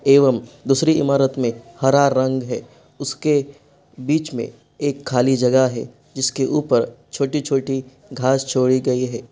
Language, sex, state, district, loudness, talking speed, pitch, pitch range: Hindi, male, Jharkhand, Sahebganj, -19 LUFS, 135 wpm, 135 Hz, 130-140 Hz